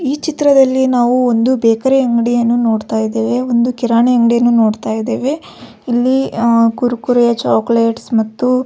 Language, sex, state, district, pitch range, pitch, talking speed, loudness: Kannada, female, Karnataka, Belgaum, 230-255 Hz, 240 Hz, 130 wpm, -13 LUFS